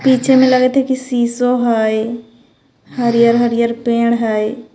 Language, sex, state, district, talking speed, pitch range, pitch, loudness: Magahi, female, Jharkhand, Palamu, 125 wpm, 235-255 Hz, 235 Hz, -14 LUFS